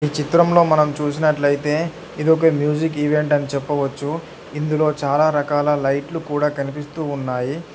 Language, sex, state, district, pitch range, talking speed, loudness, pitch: Telugu, male, Telangana, Hyderabad, 145-155 Hz, 125 wpm, -19 LUFS, 150 Hz